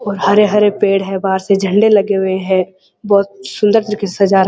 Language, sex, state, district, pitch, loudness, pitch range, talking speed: Hindi, male, Uttarakhand, Uttarkashi, 195 Hz, -14 LUFS, 190-205 Hz, 200 wpm